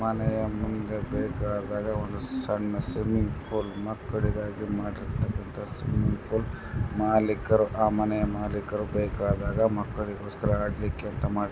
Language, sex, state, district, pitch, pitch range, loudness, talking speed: Kannada, male, Karnataka, Bellary, 105 Hz, 105-110 Hz, -29 LUFS, 110 wpm